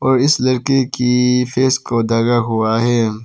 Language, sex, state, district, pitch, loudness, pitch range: Hindi, male, Arunachal Pradesh, Papum Pare, 125 Hz, -15 LUFS, 115-130 Hz